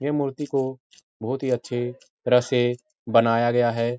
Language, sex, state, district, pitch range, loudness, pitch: Hindi, male, Uttar Pradesh, Etah, 120-135 Hz, -23 LUFS, 125 Hz